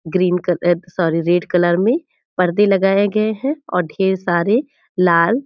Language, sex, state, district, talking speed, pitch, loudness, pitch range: Hindi, female, Bihar, Purnia, 175 wpm, 185 Hz, -17 LUFS, 175-220 Hz